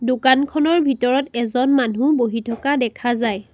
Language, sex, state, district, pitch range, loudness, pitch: Assamese, female, Assam, Sonitpur, 235-275 Hz, -18 LUFS, 255 Hz